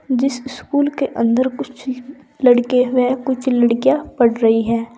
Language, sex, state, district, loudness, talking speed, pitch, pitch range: Hindi, female, Uttar Pradesh, Saharanpur, -17 LUFS, 145 wpm, 255 Hz, 240-270 Hz